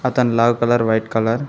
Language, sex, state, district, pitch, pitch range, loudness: Telugu, male, Telangana, Mahabubabad, 120 Hz, 115-125 Hz, -17 LUFS